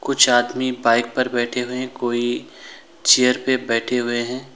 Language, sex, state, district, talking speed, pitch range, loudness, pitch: Hindi, male, West Bengal, Alipurduar, 160 wpm, 120-130 Hz, -19 LUFS, 125 Hz